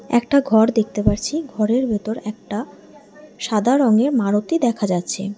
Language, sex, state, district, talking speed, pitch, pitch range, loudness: Bengali, female, West Bengal, Alipurduar, 135 wpm, 225 Hz, 210-260 Hz, -19 LUFS